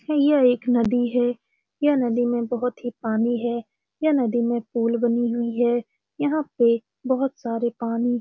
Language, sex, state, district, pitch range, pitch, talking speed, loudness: Hindi, female, Bihar, Saran, 235-250 Hz, 240 Hz, 175 wpm, -23 LUFS